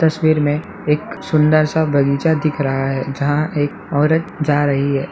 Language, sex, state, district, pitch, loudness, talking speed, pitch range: Hindi, male, Bihar, Samastipur, 150 Hz, -17 LUFS, 175 wpm, 140-155 Hz